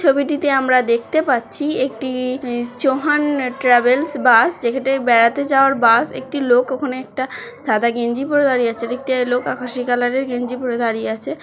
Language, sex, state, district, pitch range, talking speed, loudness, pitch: Bengali, female, West Bengal, Kolkata, 245-275 Hz, 160 wpm, -17 LUFS, 255 Hz